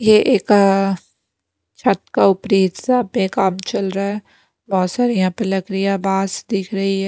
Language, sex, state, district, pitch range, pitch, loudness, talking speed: Hindi, female, Punjab, Pathankot, 190-205 Hz, 195 Hz, -18 LUFS, 170 wpm